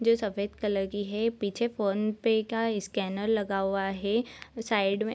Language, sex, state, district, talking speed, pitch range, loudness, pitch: Hindi, female, Bihar, Sitamarhi, 185 wpm, 200-225 Hz, -29 LUFS, 210 Hz